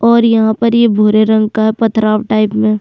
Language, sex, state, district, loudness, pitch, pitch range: Hindi, female, Uttarakhand, Tehri Garhwal, -11 LUFS, 220 Hz, 215-230 Hz